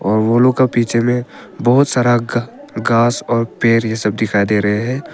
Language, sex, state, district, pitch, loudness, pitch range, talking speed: Hindi, male, Arunachal Pradesh, Papum Pare, 120 Hz, -15 LUFS, 110-120 Hz, 175 wpm